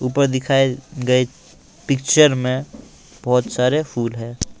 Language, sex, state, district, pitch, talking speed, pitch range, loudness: Hindi, male, Assam, Kamrup Metropolitan, 130 Hz, 115 wpm, 125-140 Hz, -19 LUFS